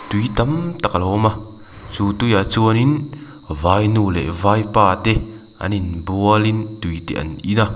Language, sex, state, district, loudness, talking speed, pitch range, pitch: Mizo, male, Mizoram, Aizawl, -18 LUFS, 195 wpm, 95-110 Hz, 105 Hz